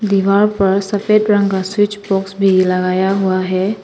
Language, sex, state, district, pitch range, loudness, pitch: Hindi, female, Arunachal Pradesh, Papum Pare, 190-205 Hz, -15 LUFS, 195 Hz